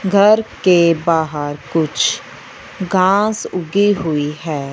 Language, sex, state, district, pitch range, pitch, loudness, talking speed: Hindi, male, Punjab, Fazilka, 155-200 Hz, 175 Hz, -16 LUFS, 100 wpm